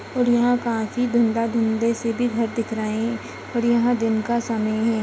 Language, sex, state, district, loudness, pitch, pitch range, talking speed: Hindi, female, Chhattisgarh, Bastar, -22 LUFS, 230 Hz, 225-235 Hz, 165 wpm